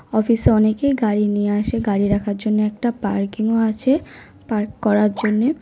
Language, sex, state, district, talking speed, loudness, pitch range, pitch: Bengali, female, West Bengal, North 24 Parganas, 170 wpm, -19 LUFS, 210-230 Hz, 215 Hz